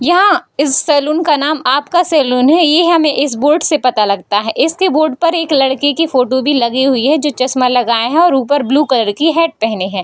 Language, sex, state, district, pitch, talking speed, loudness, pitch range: Hindi, female, Bihar, Darbhanga, 285 Hz, 235 wpm, -12 LUFS, 250-320 Hz